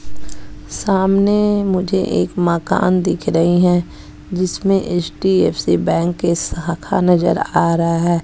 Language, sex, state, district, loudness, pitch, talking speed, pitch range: Hindi, female, Bihar, West Champaran, -16 LUFS, 180 Hz, 115 wpm, 170-190 Hz